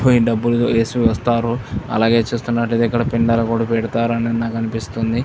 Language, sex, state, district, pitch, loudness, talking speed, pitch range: Telugu, male, Andhra Pradesh, Chittoor, 115 Hz, -18 LUFS, 160 wpm, 115-120 Hz